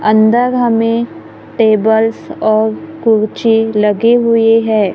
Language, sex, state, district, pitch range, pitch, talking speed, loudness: Hindi, female, Maharashtra, Gondia, 215-230 Hz, 225 Hz, 95 wpm, -12 LUFS